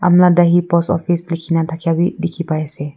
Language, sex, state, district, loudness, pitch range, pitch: Nagamese, female, Nagaland, Kohima, -16 LUFS, 165-175 Hz, 170 Hz